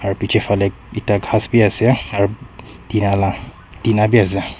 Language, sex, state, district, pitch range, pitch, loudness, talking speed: Nagamese, male, Nagaland, Dimapur, 100-110 Hz, 105 Hz, -17 LUFS, 170 wpm